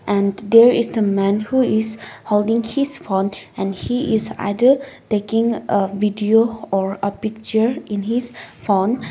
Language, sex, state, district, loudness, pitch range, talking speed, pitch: English, female, Nagaland, Kohima, -19 LUFS, 200-230 Hz, 150 wpm, 215 Hz